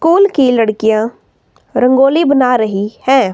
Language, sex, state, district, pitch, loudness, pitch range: Hindi, female, Himachal Pradesh, Shimla, 255 Hz, -12 LUFS, 220-275 Hz